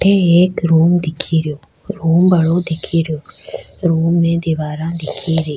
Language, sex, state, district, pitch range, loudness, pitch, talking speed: Rajasthani, female, Rajasthan, Churu, 160-175 Hz, -15 LUFS, 165 Hz, 150 wpm